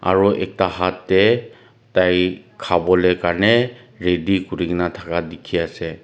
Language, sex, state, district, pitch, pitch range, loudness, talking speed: Nagamese, male, Nagaland, Dimapur, 90 Hz, 85-95 Hz, -19 LUFS, 110 wpm